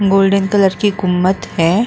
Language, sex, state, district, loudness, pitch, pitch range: Hindi, female, Uttar Pradesh, Muzaffarnagar, -14 LUFS, 195 Hz, 185-200 Hz